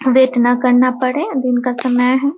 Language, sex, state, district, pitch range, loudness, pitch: Hindi, female, Bihar, Muzaffarpur, 250-260 Hz, -15 LUFS, 255 Hz